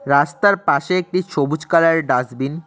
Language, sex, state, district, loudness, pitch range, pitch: Bengali, male, West Bengal, Cooch Behar, -17 LUFS, 140-180 Hz, 160 Hz